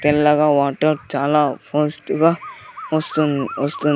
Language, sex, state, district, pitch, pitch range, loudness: Telugu, male, Andhra Pradesh, Sri Satya Sai, 150 Hz, 140-155 Hz, -19 LUFS